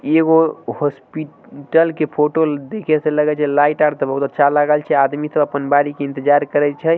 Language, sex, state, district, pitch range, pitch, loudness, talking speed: Maithili, male, Bihar, Samastipur, 145-155 Hz, 150 Hz, -16 LUFS, 215 wpm